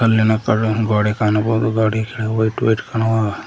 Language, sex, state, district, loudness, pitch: Kannada, male, Karnataka, Koppal, -18 LUFS, 110 Hz